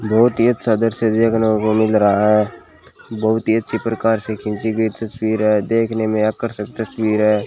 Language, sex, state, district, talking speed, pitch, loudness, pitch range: Hindi, male, Rajasthan, Bikaner, 185 wpm, 110 Hz, -18 LUFS, 110-115 Hz